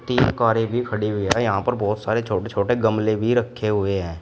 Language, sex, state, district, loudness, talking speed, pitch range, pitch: Hindi, male, Uttar Pradesh, Shamli, -21 LUFS, 240 wpm, 105-120 Hz, 110 Hz